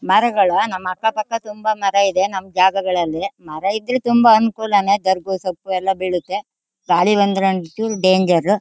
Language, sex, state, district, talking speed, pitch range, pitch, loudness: Kannada, female, Karnataka, Shimoga, 155 wpm, 185-215 Hz, 195 Hz, -17 LUFS